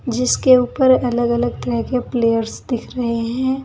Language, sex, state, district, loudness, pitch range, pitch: Hindi, female, Uttar Pradesh, Saharanpur, -18 LUFS, 235-255 Hz, 245 Hz